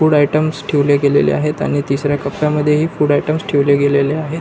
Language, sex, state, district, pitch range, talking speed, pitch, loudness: Marathi, male, Maharashtra, Nagpur, 140-150 Hz, 205 wpm, 145 Hz, -15 LUFS